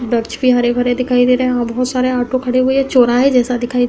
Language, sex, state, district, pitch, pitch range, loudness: Hindi, female, Uttar Pradesh, Hamirpur, 250 Hz, 245-255 Hz, -14 LUFS